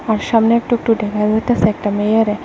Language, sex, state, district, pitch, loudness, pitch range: Bengali, female, Tripura, West Tripura, 220 Hz, -16 LUFS, 210-230 Hz